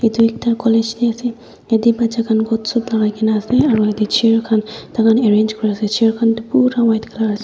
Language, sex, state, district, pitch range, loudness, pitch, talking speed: Nagamese, female, Nagaland, Dimapur, 220-230 Hz, -16 LUFS, 225 Hz, 210 wpm